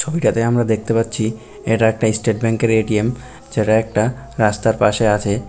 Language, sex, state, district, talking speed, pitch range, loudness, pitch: Bengali, male, West Bengal, Kolkata, 165 wpm, 110-115 Hz, -17 LUFS, 110 Hz